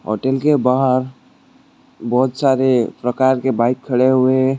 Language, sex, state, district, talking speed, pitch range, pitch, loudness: Hindi, male, West Bengal, Alipurduar, 145 wpm, 125-135 Hz, 130 Hz, -16 LUFS